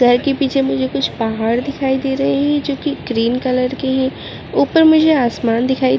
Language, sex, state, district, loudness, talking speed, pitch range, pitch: Hindi, female, Uttarakhand, Uttarkashi, -16 LUFS, 210 wpm, 230-280 Hz, 260 Hz